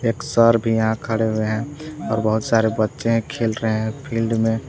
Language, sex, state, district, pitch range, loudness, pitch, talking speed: Hindi, male, Jharkhand, Palamu, 110-115 Hz, -20 LUFS, 115 Hz, 205 wpm